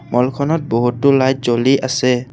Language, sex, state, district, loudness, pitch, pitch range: Assamese, male, Assam, Kamrup Metropolitan, -16 LUFS, 130 Hz, 125-140 Hz